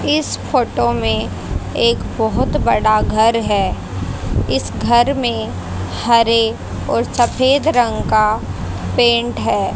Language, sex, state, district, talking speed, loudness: Hindi, female, Haryana, Jhajjar, 110 wpm, -16 LUFS